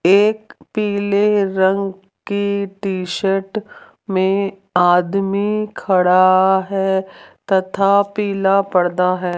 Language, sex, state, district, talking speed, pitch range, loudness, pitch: Hindi, female, Rajasthan, Jaipur, 90 wpm, 190-200 Hz, -17 LUFS, 195 Hz